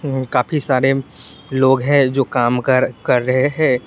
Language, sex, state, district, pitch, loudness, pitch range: Hindi, male, Tripura, West Tripura, 130 Hz, -16 LUFS, 125-135 Hz